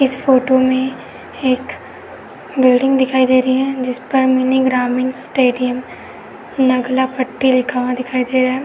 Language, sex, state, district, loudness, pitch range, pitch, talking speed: Hindi, female, Uttar Pradesh, Etah, -16 LUFS, 255-260 Hz, 260 Hz, 155 wpm